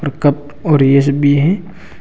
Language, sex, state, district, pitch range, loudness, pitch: Hindi, male, Arunachal Pradesh, Longding, 140-160 Hz, -13 LUFS, 145 Hz